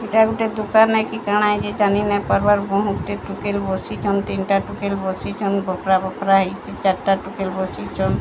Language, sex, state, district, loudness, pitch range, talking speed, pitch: Odia, female, Odisha, Sambalpur, -20 LUFS, 195-210 Hz, 170 wpm, 200 Hz